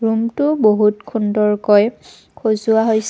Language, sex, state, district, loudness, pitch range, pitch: Assamese, female, Assam, Kamrup Metropolitan, -16 LUFS, 210-225 Hz, 220 Hz